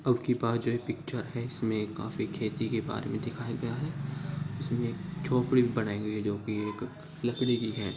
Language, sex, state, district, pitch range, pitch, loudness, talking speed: Hindi, male, Bihar, Purnia, 110-135 Hz, 120 Hz, -32 LUFS, 210 wpm